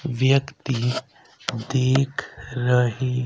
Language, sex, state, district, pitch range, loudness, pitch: Hindi, male, Haryana, Rohtak, 125-135 Hz, -23 LUFS, 130 Hz